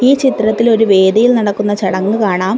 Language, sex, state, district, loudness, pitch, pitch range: Malayalam, female, Kerala, Kollam, -12 LUFS, 215 Hz, 195-230 Hz